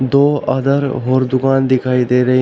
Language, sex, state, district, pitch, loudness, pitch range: Hindi, male, Uttar Pradesh, Shamli, 130 Hz, -15 LUFS, 130-135 Hz